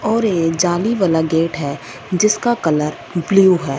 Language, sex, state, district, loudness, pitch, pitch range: Hindi, female, Punjab, Fazilka, -17 LUFS, 170 Hz, 160-195 Hz